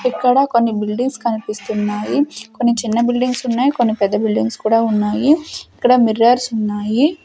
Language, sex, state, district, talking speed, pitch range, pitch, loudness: Telugu, female, Andhra Pradesh, Sri Satya Sai, 130 wpm, 215-250 Hz, 235 Hz, -17 LUFS